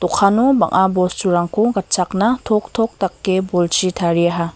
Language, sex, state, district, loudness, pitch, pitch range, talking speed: Garo, female, Meghalaya, West Garo Hills, -17 LUFS, 190 Hz, 175-215 Hz, 105 wpm